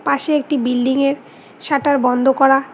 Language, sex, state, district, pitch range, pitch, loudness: Bengali, female, West Bengal, Cooch Behar, 265-285 Hz, 275 Hz, -16 LUFS